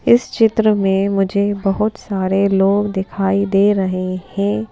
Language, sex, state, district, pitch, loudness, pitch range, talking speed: Hindi, female, Madhya Pradesh, Bhopal, 200 Hz, -16 LUFS, 195-205 Hz, 140 wpm